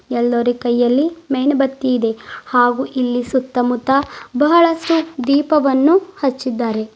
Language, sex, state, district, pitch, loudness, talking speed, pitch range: Kannada, female, Karnataka, Bidar, 260 Hz, -16 LUFS, 85 wpm, 245-290 Hz